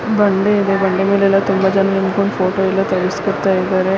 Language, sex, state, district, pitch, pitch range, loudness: Kannada, female, Karnataka, Belgaum, 195 Hz, 190-200 Hz, -15 LUFS